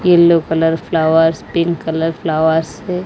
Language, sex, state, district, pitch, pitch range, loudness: Hindi, female, Odisha, Malkangiri, 165 Hz, 160-170 Hz, -15 LUFS